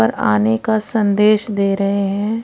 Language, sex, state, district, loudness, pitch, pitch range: Hindi, female, Odisha, Khordha, -16 LUFS, 200 Hz, 195-215 Hz